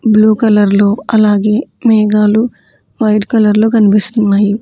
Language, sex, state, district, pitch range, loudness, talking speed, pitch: Telugu, female, Andhra Pradesh, Manyam, 205-225 Hz, -11 LUFS, 90 wpm, 215 Hz